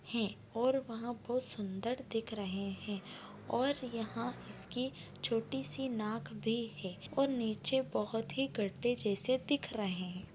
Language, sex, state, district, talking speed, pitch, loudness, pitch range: Hindi, female, Bihar, Begusarai, 145 wpm, 230 Hz, -37 LUFS, 210-255 Hz